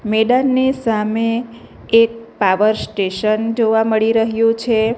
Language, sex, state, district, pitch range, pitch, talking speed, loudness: Gujarati, female, Gujarat, Navsari, 215-230 Hz, 225 Hz, 110 wpm, -16 LUFS